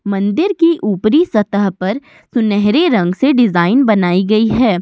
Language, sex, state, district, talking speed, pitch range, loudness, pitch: Hindi, female, Uttar Pradesh, Budaun, 150 wpm, 200-265 Hz, -13 LUFS, 215 Hz